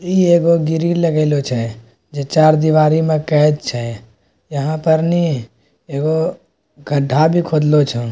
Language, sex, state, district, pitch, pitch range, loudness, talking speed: Maithili, male, Bihar, Bhagalpur, 150 Hz, 120-160 Hz, -15 LUFS, 140 wpm